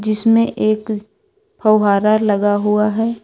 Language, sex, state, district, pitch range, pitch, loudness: Hindi, female, Uttar Pradesh, Lucknow, 210-225 Hz, 215 Hz, -15 LUFS